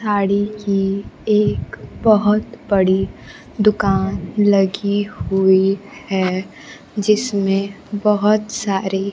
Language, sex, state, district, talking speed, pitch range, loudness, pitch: Hindi, female, Bihar, Kaimur, 80 wpm, 195-210 Hz, -18 LUFS, 200 Hz